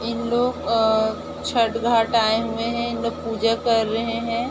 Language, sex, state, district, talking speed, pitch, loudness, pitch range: Hindi, female, Chhattisgarh, Bilaspur, 185 wpm, 230 Hz, -21 LUFS, 225-235 Hz